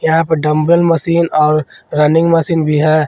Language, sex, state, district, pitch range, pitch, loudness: Hindi, male, Jharkhand, Ranchi, 155-165 Hz, 160 Hz, -13 LUFS